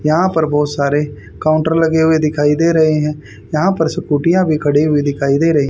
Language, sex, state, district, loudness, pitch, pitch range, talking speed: Hindi, male, Haryana, Rohtak, -14 LUFS, 155 Hz, 145-160 Hz, 210 wpm